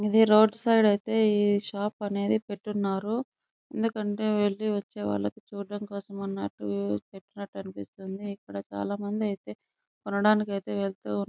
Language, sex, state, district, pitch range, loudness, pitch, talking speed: Telugu, female, Andhra Pradesh, Chittoor, 195-210 Hz, -28 LUFS, 205 Hz, 120 wpm